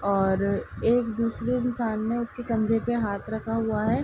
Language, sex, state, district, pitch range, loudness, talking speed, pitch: Hindi, female, Uttar Pradesh, Ghazipur, 215-235 Hz, -26 LUFS, 180 wpm, 225 Hz